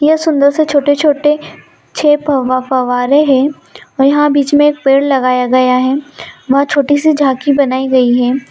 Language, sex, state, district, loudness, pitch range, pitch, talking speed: Hindi, female, Bihar, Gopalganj, -11 LUFS, 260-295 Hz, 280 Hz, 170 wpm